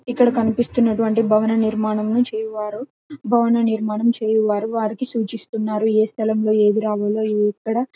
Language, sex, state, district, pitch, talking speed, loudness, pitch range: Telugu, female, Telangana, Nalgonda, 220 Hz, 130 wpm, -19 LUFS, 215-235 Hz